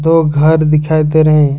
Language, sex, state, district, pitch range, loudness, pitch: Hindi, male, Jharkhand, Ranchi, 150-160 Hz, -11 LUFS, 155 Hz